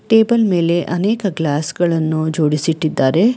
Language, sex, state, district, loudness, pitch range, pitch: Kannada, female, Karnataka, Bangalore, -16 LUFS, 155-205 Hz, 170 Hz